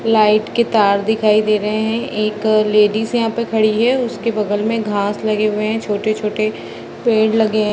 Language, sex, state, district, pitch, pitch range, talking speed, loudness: Hindi, female, Bihar, Sitamarhi, 215 Hz, 210-225 Hz, 210 wpm, -16 LUFS